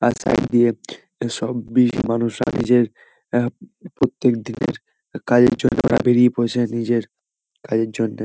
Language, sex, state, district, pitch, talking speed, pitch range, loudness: Bengali, male, West Bengal, Kolkata, 120 Hz, 130 wpm, 115-125 Hz, -19 LUFS